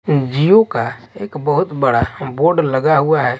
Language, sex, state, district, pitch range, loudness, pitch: Hindi, male, Maharashtra, Washim, 130-160 Hz, -15 LUFS, 145 Hz